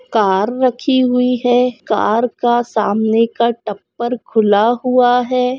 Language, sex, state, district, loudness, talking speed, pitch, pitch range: Hindi, female, Goa, North and South Goa, -15 LUFS, 130 wpm, 240 Hz, 220-250 Hz